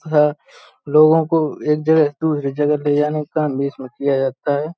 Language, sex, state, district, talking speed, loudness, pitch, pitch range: Hindi, male, Uttar Pradesh, Hamirpur, 200 wpm, -18 LUFS, 150 Hz, 145-155 Hz